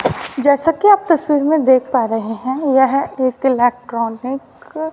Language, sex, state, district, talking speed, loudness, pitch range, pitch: Hindi, female, Haryana, Rohtak, 160 wpm, -16 LUFS, 250-300 Hz, 265 Hz